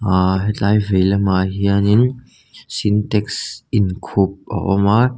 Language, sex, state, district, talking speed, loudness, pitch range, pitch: Mizo, male, Mizoram, Aizawl, 115 wpm, -17 LUFS, 95-105 Hz, 100 Hz